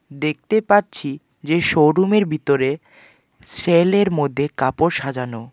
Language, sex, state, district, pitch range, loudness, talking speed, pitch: Bengali, male, West Bengal, Alipurduar, 140-175 Hz, -18 LUFS, 100 wpm, 150 Hz